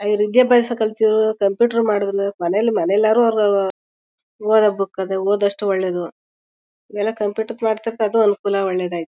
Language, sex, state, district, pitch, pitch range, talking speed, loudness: Kannada, female, Karnataka, Mysore, 210 Hz, 200-220 Hz, 130 wpm, -18 LUFS